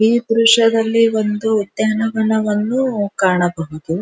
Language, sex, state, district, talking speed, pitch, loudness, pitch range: Kannada, female, Karnataka, Dharwad, 90 wpm, 220 Hz, -16 LUFS, 205-225 Hz